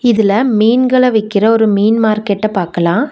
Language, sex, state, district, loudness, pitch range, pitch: Tamil, female, Tamil Nadu, Nilgiris, -12 LUFS, 205-235 Hz, 220 Hz